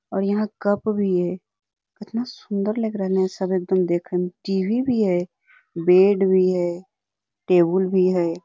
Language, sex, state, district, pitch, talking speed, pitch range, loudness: Magahi, female, Bihar, Lakhisarai, 190 Hz, 165 wpm, 180-205 Hz, -21 LUFS